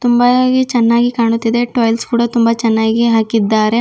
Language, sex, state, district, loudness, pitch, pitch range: Kannada, female, Karnataka, Bidar, -13 LUFS, 235 Hz, 225-240 Hz